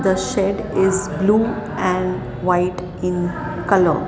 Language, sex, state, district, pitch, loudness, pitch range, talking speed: English, female, Maharashtra, Mumbai Suburban, 185 Hz, -20 LUFS, 180-195 Hz, 120 wpm